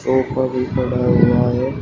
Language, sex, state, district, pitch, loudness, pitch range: Hindi, male, Uttar Pradesh, Shamli, 125 Hz, -17 LUFS, 125-130 Hz